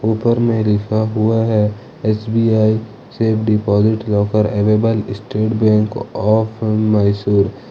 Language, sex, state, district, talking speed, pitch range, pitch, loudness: Hindi, male, Jharkhand, Ranchi, 115 wpm, 105-110 Hz, 110 Hz, -16 LUFS